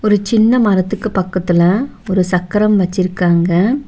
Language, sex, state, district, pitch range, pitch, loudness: Tamil, female, Tamil Nadu, Nilgiris, 180-215 Hz, 190 Hz, -14 LUFS